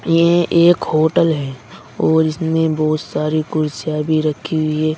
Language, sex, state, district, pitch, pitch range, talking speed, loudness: Hindi, male, Uttar Pradesh, Saharanpur, 155 Hz, 155-165 Hz, 155 wpm, -16 LUFS